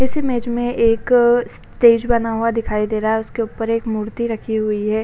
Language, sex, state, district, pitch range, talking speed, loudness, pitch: Hindi, female, Maharashtra, Chandrapur, 220-240 Hz, 225 wpm, -18 LUFS, 230 Hz